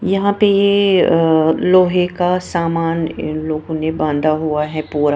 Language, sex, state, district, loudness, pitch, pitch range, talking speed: Hindi, female, Punjab, Kapurthala, -16 LUFS, 165 Hz, 155-185 Hz, 160 wpm